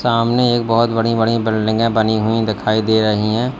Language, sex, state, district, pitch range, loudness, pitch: Hindi, male, Uttar Pradesh, Lalitpur, 110-115 Hz, -16 LUFS, 115 Hz